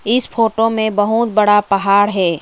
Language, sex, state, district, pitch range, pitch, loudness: Hindi, female, West Bengal, Alipurduar, 200-225 Hz, 215 Hz, -14 LUFS